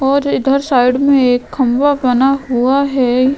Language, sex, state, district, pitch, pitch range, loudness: Hindi, female, Goa, North and South Goa, 265 Hz, 250-275 Hz, -13 LUFS